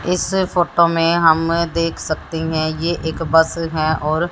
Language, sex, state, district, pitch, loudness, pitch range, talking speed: Hindi, female, Haryana, Jhajjar, 165 Hz, -17 LUFS, 160-170 Hz, 165 wpm